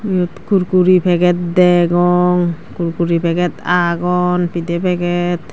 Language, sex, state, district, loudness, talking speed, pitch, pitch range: Chakma, female, Tripura, Dhalai, -15 LUFS, 100 wpm, 175 Hz, 175-180 Hz